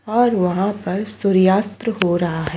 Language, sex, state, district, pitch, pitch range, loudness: Hindi, female, Uttarakhand, Tehri Garhwal, 195 Hz, 180-215 Hz, -18 LUFS